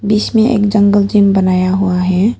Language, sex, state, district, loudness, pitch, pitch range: Hindi, female, Arunachal Pradesh, Papum Pare, -12 LUFS, 205 Hz, 185-210 Hz